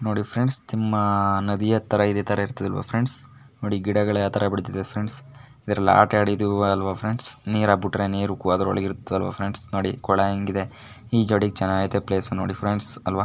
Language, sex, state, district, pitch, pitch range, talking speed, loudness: Kannada, female, Karnataka, Mysore, 105 Hz, 100-110 Hz, 120 wpm, -23 LUFS